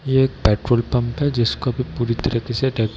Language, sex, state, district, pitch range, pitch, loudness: Hindi, male, Bihar, Darbhanga, 115-130 Hz, 120 Hz, -20 LUFS